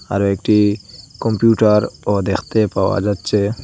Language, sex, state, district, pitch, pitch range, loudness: Bengali, male, Assam, Hailakandi, 105 Hz, 100-110 Hz, -17 LUFS